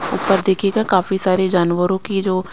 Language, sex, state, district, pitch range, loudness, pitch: Hindi, female, Chandigarh, Chandigarh, 185-195 Hz, -17 LUFS, 190 Hz